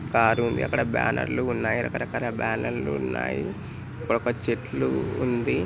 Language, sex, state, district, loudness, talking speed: Telugu, male, Telangana, Nalgonda, -26 LUFS, 150 wpm